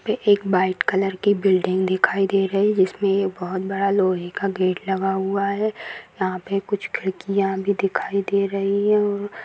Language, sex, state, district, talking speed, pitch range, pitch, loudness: Hindi, female, Bihar, Vaishali, 195 wpm, 190-200 Hz, 195 Hz, -21 LUFS